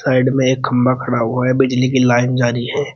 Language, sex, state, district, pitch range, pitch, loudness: Hindi, male, Uttar Pradesh, Shamli, 120-130 Hz, 130 Hz, -15 LUFS